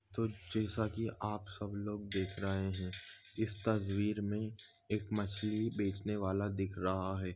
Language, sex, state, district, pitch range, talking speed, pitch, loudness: Hindi, male, Goa, North and South Goa, 95-105 Hz, 155 wpm, 105 Hz, -38 LUFS